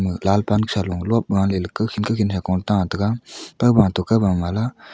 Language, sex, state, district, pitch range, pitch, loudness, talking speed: Wancho, male, Arunachal Pradesh, Longding, 95-110 Hz, 100 Hz, -20 LUFS, 220 wpm